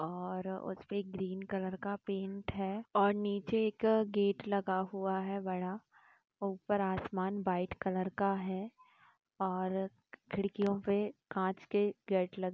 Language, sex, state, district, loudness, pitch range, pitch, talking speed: Hindi, female, Bihar, Gaya, -36 LUFS, 190-200 Hz, 195 Hz, 140 wpm